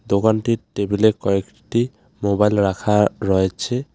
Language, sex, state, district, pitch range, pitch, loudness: Bengali, male, West Bengal, Alipurduar, 100-110 Hz, 105 Hz, -20 LUFS